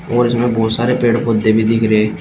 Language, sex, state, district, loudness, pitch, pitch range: Hindi, male, Uttar Pradesh, Shamli, -14 LUFS, 115 Hz, 110-120 Hz